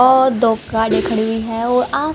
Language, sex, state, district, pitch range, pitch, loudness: Hindi, female, Haryana, Rohtak, 225-260 Hz, 235 Hz, -16 LUFS